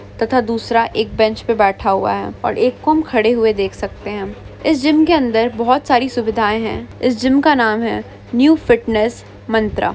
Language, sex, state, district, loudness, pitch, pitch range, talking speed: Hindi, female, West Bengal, Purulia, -16 LUFS, 230 Hz, 215-255 Hz, 200 wpm